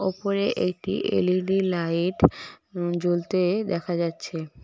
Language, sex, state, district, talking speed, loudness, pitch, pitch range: Bengali, female, West Bengal, Cooch Behar, 105 wpm, -25 LUFS, 180 Hz, 175-190 Hz